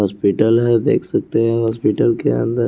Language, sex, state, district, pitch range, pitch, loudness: Hindi, male, Chandigarh, Chandigarh, 100-115 Hz, 115 Hz, -16 LUFS